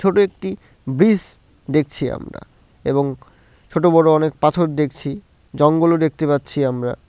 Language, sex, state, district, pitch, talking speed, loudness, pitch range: Bengali, male, West Bengal, Cooch Behar, 150 Hz, 135 wpm, -18 LUFS, 140-170 Hz